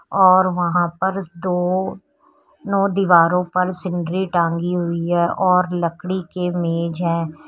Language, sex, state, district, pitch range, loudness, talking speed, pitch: Hindi, female, Uttar Pradesh, Shamli, 170-185 Hz, -19 LUFS, 130 wpm, 180 Hz